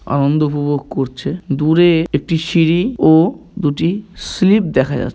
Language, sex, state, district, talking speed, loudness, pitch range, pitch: Bengali, male, West Bengal, Kolkata, 130 wpm, -15 LUFS, 145-170 Hz, 160 Hz